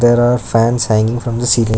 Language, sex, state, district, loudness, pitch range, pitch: English, male, Karnataka, Bangalore, -14 LUFS, 115-120 Hz, 120 Hz